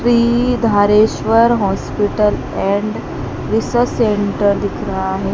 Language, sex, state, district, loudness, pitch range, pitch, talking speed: Hindi, female, Madhya Pradesh, Dhar, -15 LUFS, 200-235 Hz, 210 Hz, 100 wpm